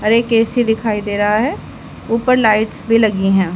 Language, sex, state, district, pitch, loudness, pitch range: Hindi, female, Haryana, Charkhi Dadri, 220 Hz, -15 LUFS, 210-230 Hz